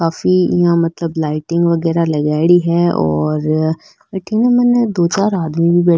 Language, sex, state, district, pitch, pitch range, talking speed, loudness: Rajasthani, female, Rajasthan, Nagaur, 170 Hz, 160-185 Hz, 160 wpm, -14 LUFS